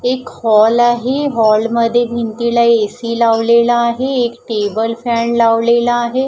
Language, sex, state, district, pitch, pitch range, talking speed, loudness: Marathi, female, Maharashtra, Gondia, 235 Hz, 230-240 Hz, 125 wpm, -14 LUFS